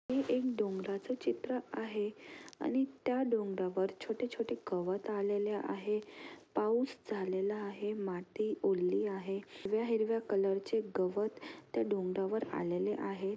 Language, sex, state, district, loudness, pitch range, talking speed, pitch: Marathi, female, Maharashtra, Aurangabad, -36 LUFS, 195-235 Hz, 115 wpm, 210 Hz